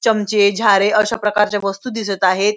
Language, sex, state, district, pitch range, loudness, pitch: Marathi, female, Maharashtra, Nagpur, 200-215 Hz, -16 LUFS, 210 Hz